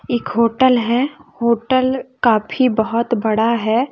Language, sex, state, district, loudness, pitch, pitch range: Hindi, female, Bihar, West Champaran, -17 LUFS, 235 Hz, 230-255 Hz